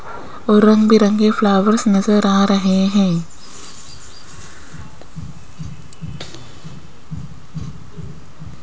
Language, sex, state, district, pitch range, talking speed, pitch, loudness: Hindi, female, Rajasthan, Jaipur, 170-215 Hz, 55 wpm, 200 Hz, -14 LUFS